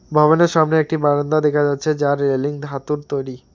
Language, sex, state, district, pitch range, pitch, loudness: Bengali, male, West Bengal, Alipurduar, 140-155 Hz, 145 Hz, -18 LUFS